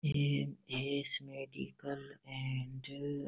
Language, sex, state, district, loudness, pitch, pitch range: Rajasthani, male, Rajasthan, Nagaur, -39 LUFS, 135 Hz, 130-140 Hz